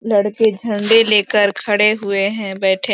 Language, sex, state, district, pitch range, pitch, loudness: Hindi, female, Bihar, East Champaran, 200-220 Hz, 205 Hz, -15 LUFS